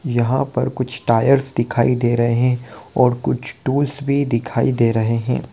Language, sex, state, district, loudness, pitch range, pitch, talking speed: Hindi, male, Bihar, Gopalganj, -18 LUFS, 120-130 Hz, 125 Hz, 185 wpm